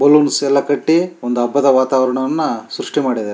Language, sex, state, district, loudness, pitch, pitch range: Kannada, male, Karnataka, Shimoga, -16 LUFS, 140 Hz, 130-145 Hz